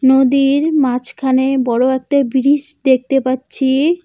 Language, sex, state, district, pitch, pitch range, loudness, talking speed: Bengali, female, West Bengal, Cooch Behar, 265 Hz, 260-280 Hz, -15 LUFS, 105 wpm